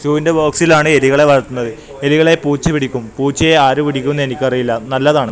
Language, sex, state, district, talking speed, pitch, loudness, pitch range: Malayalam, male, Kerala, Kasaragod, 160 wpm, 145 Hz, -13 LUFS, 130-150 Hz